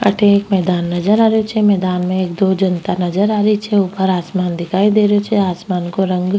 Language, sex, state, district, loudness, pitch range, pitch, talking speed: Rajasthani, female, Rajasthan, Nagaur, -15 LUFS, 180-205 Hz, 195 Hz, 245 wpm